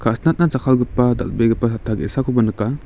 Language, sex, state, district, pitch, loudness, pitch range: Garo, male, Meghalaya, West Garo Hills, 120 Hz, -18 LUFS, 115-130 Hz